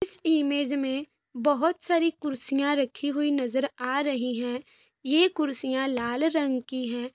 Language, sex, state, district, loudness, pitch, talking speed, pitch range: Hindi, female, Bihar, Sitamarhi, -27 LUFS, 280 Hz, 150 wpm, 255-300 Hz